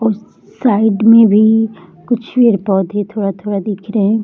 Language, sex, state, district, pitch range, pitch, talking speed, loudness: Hindi, female, Bihar, Jamui, 200-225 Hz, 210 Hz, 140 wpm, -13 LUFS